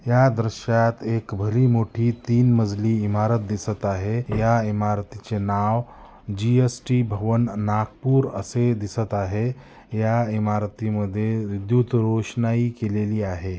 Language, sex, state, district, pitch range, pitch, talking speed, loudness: Marathi, male, Maharashtra, Nagpur, 105-120 Hz, 110 Hz, 110 wpm, -23 LUFS